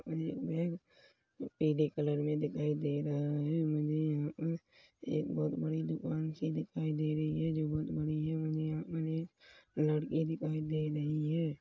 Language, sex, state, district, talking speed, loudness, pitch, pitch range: Hindi, male, Chhattisgarh, Rajnandgaon, 155 wpm, -35 LUFS, 155 Hz, 150-160 Hz